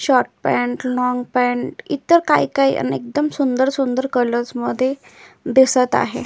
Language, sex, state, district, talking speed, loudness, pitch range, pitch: Marathi, female, Maharashtra, Solapur, 135 wpm, -18 LUFS, 245-275 Hz, 255 Hz